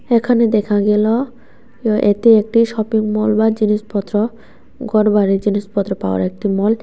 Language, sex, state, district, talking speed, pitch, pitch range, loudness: Bengali, female, Tripura, West Tripura, 125 wpm, 215 Hz, 205-230 Hz, -16 LUFS